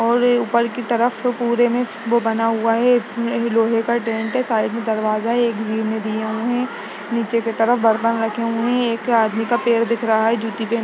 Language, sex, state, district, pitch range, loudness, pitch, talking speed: Hindi, female, Uttar Pradesh, Etah, 225-235 Hz, -19 LUFS, 230 Hz, 230 wpm